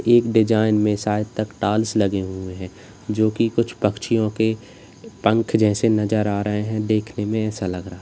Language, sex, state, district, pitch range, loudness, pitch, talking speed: Hindi, male, Uttar Pradesh, Lalitpur, 105-110 Hz, -21 LUFS, 110 Hz, 195 wpm